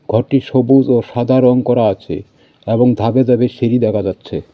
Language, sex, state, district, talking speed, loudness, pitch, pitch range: Bengali, male, West Bengal, Cooch Behar, 170 wpm, -14 LUFS, 125 Hz, 115-130 Hz